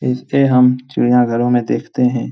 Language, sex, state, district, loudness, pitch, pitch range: Hindi, male, Bihar, Jamui, -15 LUFS, 125 Hz, 120-125 Hz